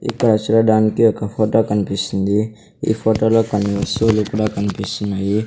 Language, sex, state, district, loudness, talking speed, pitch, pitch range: Telugu, male, Andhra Pradesh, Sri Satya Sai, -17 LUFS, 120 wpm, 110 Hz, 100-110 Hz